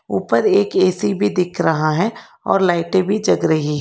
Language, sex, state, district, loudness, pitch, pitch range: Hindi, female, Karnataka, Bangalore, -17 LUFS, 185 Hz, 160-205 Hz